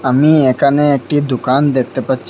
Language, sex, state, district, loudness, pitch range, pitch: Bengali, male, Assam, Hailakandi, -13 LUFS, 130-145 Hz, 135 Hz